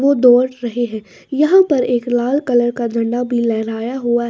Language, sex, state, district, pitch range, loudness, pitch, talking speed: Hindi, female, Bihar, West Champaran, 235-255 Hz, -16 LUFS, 240 Hz, 210 wpm